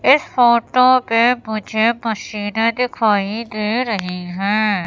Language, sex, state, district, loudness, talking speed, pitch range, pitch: Hindi, female, Madhya Pradesh, Katni, -17 LUFS, 110 wpm, 210-240 Hz, 225 Hz